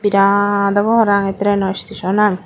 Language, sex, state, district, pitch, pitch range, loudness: Chakma, female, Tripura, Dhalai, 200 Hz, 195-205 Hz, -15 LUFS